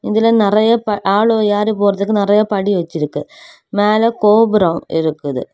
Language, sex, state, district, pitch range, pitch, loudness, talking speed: Tamil, female, Tamil Nadu, Kanyakumari, 185-215 Hz, 205 Hz, -14 LUFS, 130 wpm